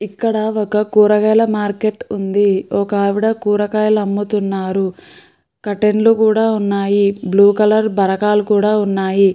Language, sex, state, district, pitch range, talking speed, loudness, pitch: Telugu, female, Andhra Pradesh, Krishna, 200-215 Hz, 110 wpm, -15 LUFS, 210 Hz